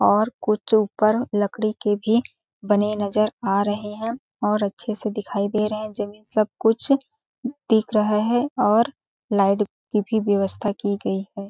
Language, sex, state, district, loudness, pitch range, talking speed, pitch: Hindi, female, Chhattisgarh, Balrampur, -22 LUFS, 205-220 Hz, 165 wpm, 210 Hz